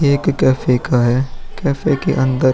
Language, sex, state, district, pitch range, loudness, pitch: Hindi, male, Uttar Pradesh, Muzaffarnagar, 130-145 Hz, -16 LUFS, 130 Hz